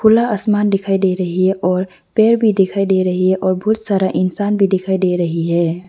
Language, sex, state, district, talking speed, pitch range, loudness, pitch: Hindi, female, Arunachal Pradesh, Lower Dibang Valley, 225 wpm, 185-205 Hz, -16 LUFS, 190 Hz